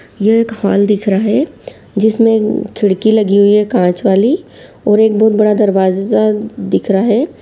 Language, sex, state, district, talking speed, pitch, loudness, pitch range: Hindi, female, Bihar, Saran, 170 wpm, 215 Hz, -12 LUFS, 200-220 Hz